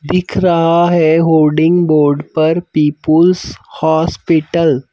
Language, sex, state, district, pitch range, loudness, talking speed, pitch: Hindi, male, Madhya Pradesh, Bhopal, 155-170 Hz, -12 LUFS, 85 wpm, 160 Hz